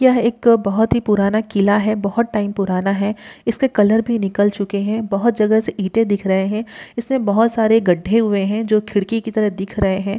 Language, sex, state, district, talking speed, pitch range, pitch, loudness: Hindi, female, Bihar, Jahanabad, 225 wpm, 200-225 Hz, 210 Hz, -17 LUFS